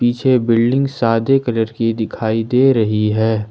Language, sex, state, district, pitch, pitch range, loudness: Hindi, male, Jharkhand, Ranchi, 115 Hz, 110-125 Hz, -16 LUFS